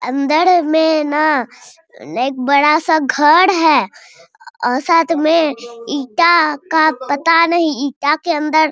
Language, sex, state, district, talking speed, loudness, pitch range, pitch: Hindi, female, Bihar, Araria, 125 wpm, -14 LUFS, 285-330 Hz, 310 Hz